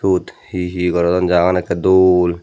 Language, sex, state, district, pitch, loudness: Chakma, male, Tripura, Dhalai, 90 Hz, -15 LUFS